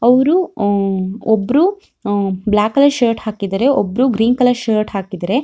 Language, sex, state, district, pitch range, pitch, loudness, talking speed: Kannada, female, Karnataka, Shimoga, 200-260 Hz, 225 Hz, -15 LUFS, 145 wpm